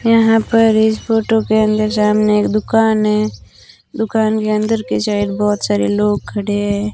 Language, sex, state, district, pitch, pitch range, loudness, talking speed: Hindi, female, Rajasthan, Bikaner, 215 Hz, 210-220 Hz, -15 LUFS, 175 wpm